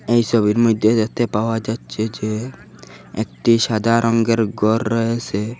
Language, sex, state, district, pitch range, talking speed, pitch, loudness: Bengali, male, Assam, Hailakandi, 110-115 Hz, 130 wpm, 115 Hz, -18 LUFS